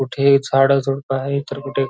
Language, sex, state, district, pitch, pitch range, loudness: Marathi, male, Maharashtra, Nagpur, 135 Hz, 135-140 Hz, -18 LUFS